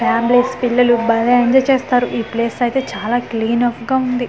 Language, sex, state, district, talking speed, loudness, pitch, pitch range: Telugu, female, Andhra Pradesh, Manyam, 180 wpm, -16 LUFS, 245 Hz, 235-250 Hz